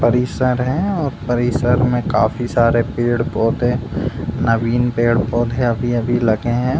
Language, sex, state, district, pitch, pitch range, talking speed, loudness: Hindi, male, Uttar Pradesh, Budaun, 120 Hz, 120-125 Hz, 115 wpm, -17 LUFS